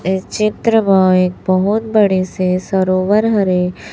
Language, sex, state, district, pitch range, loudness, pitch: Hindi, male, Chhattisgarh, Raipur, 185-210 Hz, -14 LUFS, 190 Hz